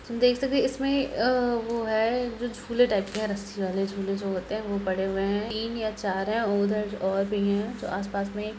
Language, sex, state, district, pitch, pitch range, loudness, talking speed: Hindi, female, Bihar, Purnia, 210 Hz, 200-235 Hz, -27 LUFS, 225 wpm